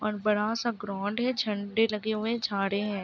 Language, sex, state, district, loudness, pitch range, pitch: Hindi, female, Uttar Pradesh, Ghazipur, -29 LUFS, 205-225 Hz, 210 Hz